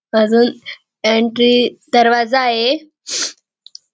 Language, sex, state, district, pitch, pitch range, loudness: Marathi, female, Maharashtra, Dhule, 240 Hz, 230-255 Hz, -15 LUFS